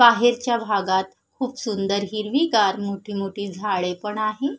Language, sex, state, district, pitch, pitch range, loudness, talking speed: Marathi, female, Maharashtra, Gondia, 210 Hz, 200-235 Hz, -23 LUFS, 130 wpm